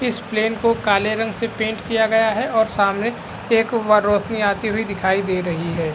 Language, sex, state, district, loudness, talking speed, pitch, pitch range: Hindi, male, Bihar, Araria, -19 LUFS, 210 wpm, 220 Hz, 200-225 Hz